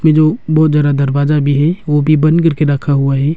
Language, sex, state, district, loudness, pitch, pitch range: Hindi, male, Arunachal Pradesh, Longding, -12 LUFS, 150 Hz, 145-155 Hz